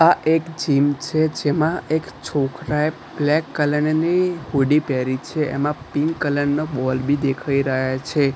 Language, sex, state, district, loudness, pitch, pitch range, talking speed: Gujarati, male, Gujarat, Gandhinagar, -21 LUFS, 150 Hz, 140-155 Hz, 160 wpm